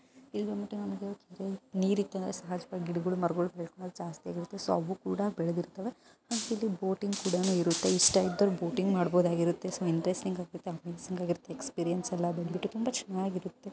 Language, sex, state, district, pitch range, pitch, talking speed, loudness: Kannada, female, Karnataka, Mysore, 175-200 Hz, 185 Hz, 130 wpm, -32 LUFS